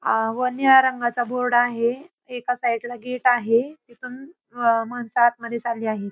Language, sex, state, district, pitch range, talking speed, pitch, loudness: Marathi, female, Maharashtra, Pune, 235-250 Hz, 155 wpm, 245 Hz, -21 LUFS